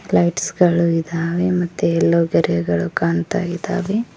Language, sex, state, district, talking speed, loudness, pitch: Kannada, male, Karnataka, Koppal, 100 wpm, -18 LUFS, 165 Hz